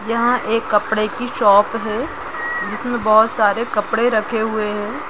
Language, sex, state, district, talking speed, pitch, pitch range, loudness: Hindi, female, Jharkhand, Jamtara, 155 wpm, 220 Hz, 215-235 Hz, -18 LUFS